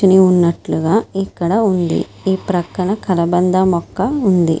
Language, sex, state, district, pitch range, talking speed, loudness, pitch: Telugu, female, Andhra Pradesh, Srikakulam, 175-195 Hz, 115 wpm, -16 LUFS, 185 Hz